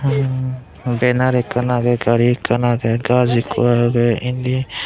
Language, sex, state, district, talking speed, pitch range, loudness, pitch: Chakma, male, Tripura, Dhalai, 125 wpm, 120-125 Hz, -17 LUFS, 120 Hz